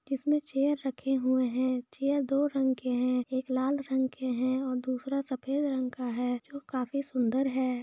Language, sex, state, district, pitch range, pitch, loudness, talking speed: Hindi, female, Jharkhand, Sahebganj, 255-275 Hz, 260 Hz, -30 LUFS, 190 wpm